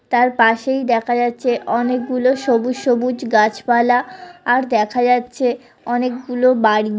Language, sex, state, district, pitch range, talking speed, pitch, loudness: Bengali, female, West Bengal, Kolkata, 235-250 Hz, 110 wpm, 245 Hz, -17 LUFS